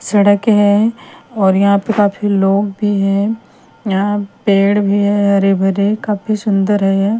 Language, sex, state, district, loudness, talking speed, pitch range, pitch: Hindi, female, Bihar, Patna, -14 LUFS, 140 wpm, 195-210 Hz, 205 Hz